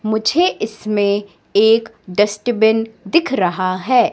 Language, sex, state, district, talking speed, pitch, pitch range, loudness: Hindi, female, Madhya Pradesh, Katni, 100 wpm, 220 Hz, 205-235 Hz, -17 LUFS